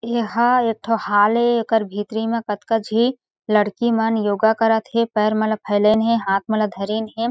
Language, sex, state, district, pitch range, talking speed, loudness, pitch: Chhattisgarhi, female, Chhattisgarh, Jashpur, 210-230 Hz, 195 wpm, -19 LUFS, 220 Hz